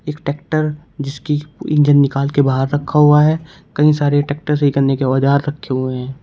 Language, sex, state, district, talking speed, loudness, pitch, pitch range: Hindi, male, Uttar Pradesh, Shamli, 185 wpm, -16 LUFS, 145 Hz, 140-150 Hz